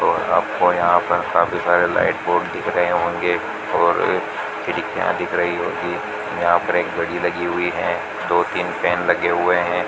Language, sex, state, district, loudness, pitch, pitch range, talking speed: Hindi, male, Rajasthan, Bikaner, -19 LUFS, 85 Hz, 85-90 Hz, 175 wpm